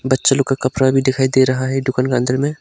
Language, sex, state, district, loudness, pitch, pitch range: Hindi, male, Arunachal Pradesh, Lower Dibang Valley, -16 LUFS, 130 Hz, 130-135 Hz